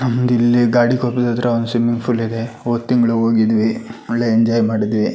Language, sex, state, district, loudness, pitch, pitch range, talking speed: Kannada, male, Karnataka, Shimoga, -16 LUFS, 120 Hz, 115-120 Hz, 165 wpm